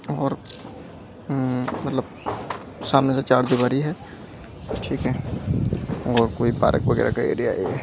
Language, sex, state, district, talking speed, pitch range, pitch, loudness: Hindi, male, Delhi, New Delhi, 130 wpm, 120-135 Hz, 125 Hz, -23 LUFS